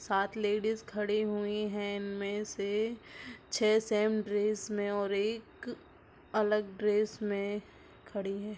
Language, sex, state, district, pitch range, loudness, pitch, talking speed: Hindi, female, Chhattisgarh, Raigarh, 205-215 Hz, -33 LUFS, 210 Hz, 125 wpm